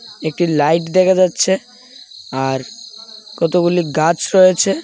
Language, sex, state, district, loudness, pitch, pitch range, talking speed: Bengali, male, Tripura, West Tripura, -15 LUFS, 185 Hz, 165-215 Hz, 100 wpm